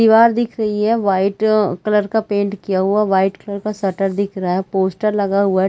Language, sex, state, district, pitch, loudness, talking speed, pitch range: Hindi, female, Chhattisgarh, Bilaspur, 200 Hz, -17 LUFS, 220 wpm, 195-215 Hz